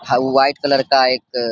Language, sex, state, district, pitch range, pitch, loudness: Hindi, male, Bihar, Saharsa, 125-135 Hz, 130 Hz, -16 LUFS